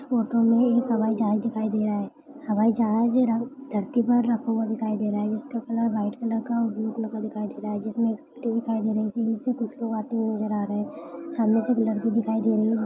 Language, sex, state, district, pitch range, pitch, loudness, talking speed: Hindi, female, Maharashtra, Nagpur, 220-235 Hz, 225 Hz, -25 LUFS, 270 wpm